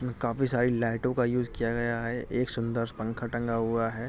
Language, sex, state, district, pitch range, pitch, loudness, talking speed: Hindi, male, Uttar Pradesh, Jalaun, 115-125 Hz, 120 Hz, -29 LUFS, 205 wpm